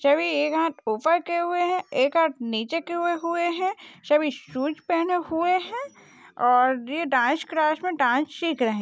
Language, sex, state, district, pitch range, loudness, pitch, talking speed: Hindi, female, Maharashtra, Dhule, 275-345 Hz, -24 LUFS, 320 Hz, 175 wpm